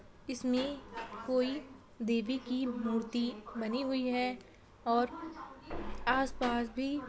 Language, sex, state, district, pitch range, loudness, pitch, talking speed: Hindi, female, Bihar, Madhepura, 240-265 Hz, -35 LUFS, 250 Hz, 100 wpm